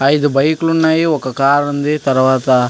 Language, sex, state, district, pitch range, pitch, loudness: Telugu, male, Andhra Pradesh, Anantapur, 135-155 Hz, 145 Hz, -14 LUFS